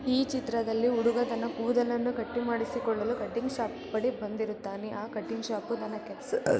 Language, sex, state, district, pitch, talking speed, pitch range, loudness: Kannada, female, Karnataka, Mysore, 235 Hz, 155 wpm, 220-245 Hz, -31 LUFS